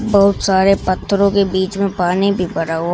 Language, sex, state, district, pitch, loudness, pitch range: Hindi, female, Uttar Pradesh, Shamli, 195 Hz, -15 LUFS, 185-200 Hz